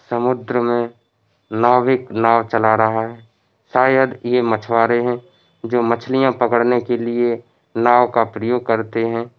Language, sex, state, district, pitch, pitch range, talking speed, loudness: Hindi, male, Uttar Pradesh, Varanasi, 120 Hz, 115-125 Hz, 135 wpm, -17 LUFS